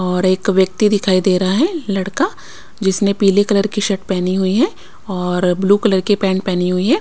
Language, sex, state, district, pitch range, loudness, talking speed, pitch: Hindi, female, Bihar, West Champaran, 185-205 Hz, -16 LUFS, 205 wpm, 195 Hz